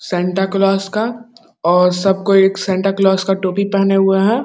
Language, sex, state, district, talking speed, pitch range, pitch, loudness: Hindi, male, Bihar, Muzaffarpur, 175 wpm, 190-200 Hz, 195 Hz, -15 LUFS